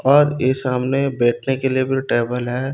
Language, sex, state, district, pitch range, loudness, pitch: Hindi, male, Chhattisgarh, Raipur, 125-135 Hz, -19 LUFS, 130 Hz